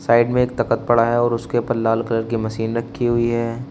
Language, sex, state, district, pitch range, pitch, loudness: Hindi, male, Uttar Pradesh, Shamli, 115-120 Hz, 115 Hz, -19 LUFS